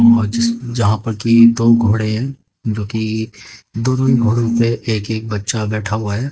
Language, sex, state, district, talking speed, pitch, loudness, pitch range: Hindi, female, Haryana, Jhajjar, 190 wpm, 115 Hz, -16 LUFS, 110-115 Hz